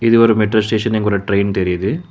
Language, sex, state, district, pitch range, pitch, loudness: Tamil, male, Tamil Nadu, Chennai, 100-115 Hz, 110 Hz, -15 LUFS